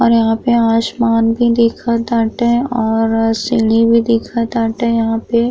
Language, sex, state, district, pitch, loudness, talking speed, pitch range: Bhojpuri, female, Uttar Pradesh, Gorakhpur, 230 Hz, -14 LUFS, 150 wpm, 225-235 Hz